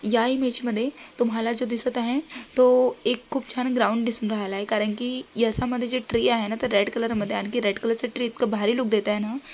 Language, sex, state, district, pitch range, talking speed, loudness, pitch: Marathi, female, Maharashtra, Solapur, 220-250 Hz, 225 wpm, -23 LUFS, 235 Hz